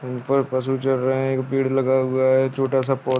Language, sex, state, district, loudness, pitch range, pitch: Hindi, male, Uttarakhand, Uttarkashi, -21 LUFS, 130-135 Hz, 130 Hz